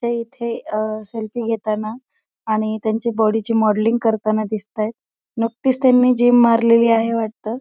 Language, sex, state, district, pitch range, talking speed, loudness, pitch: Marathi, female, Maharashtra, Aurangabad, 215-235 Hz, 140 wpm, -18 LUFS, 225 Hz